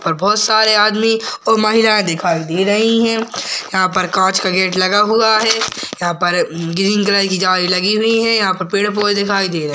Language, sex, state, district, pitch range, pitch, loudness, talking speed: Hindi, female, Uttar Pradesh, Hamirpur, 185-220 Hz, 200 Hz, -14 LUFS, 230 wpm